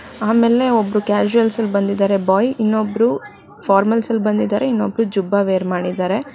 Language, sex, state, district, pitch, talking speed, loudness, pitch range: Kannada, female, Karnataka, Bangalore, 210 Hz, 140 wpm, -17 LUFS, 200-230 Hz